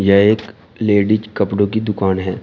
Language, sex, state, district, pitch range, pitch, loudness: Hindi, male, Uttar Pradesh, Shamli, 100-110 Hz, 100 Hz, -16 LUFS